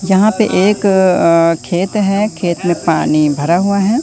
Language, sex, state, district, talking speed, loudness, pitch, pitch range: Hindi, male, Madhya Pradesh, Katni, 180 wpm, -13 LUFS, 190 Hz, 170-205 Hz